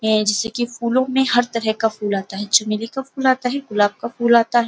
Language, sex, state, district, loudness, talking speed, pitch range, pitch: Hindi, female, Uttar Pradesh, Muzaffarnagar, -19 LUFS, 270 wpm, 215-245 Hz, 235 Hz